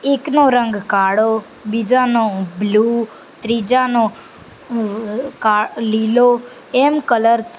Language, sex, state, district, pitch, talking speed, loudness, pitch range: Gujarati, female, Gujarat, Gandhinagar, 230 Hz, 85 wpm, -16 LUFS, 220-245 Hz